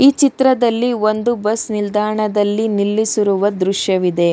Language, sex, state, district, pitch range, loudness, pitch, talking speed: Kannada, female, Karnataka, Bangalore, 205-230 Hz, -16 LUFS, 215 Hz, 85 wpm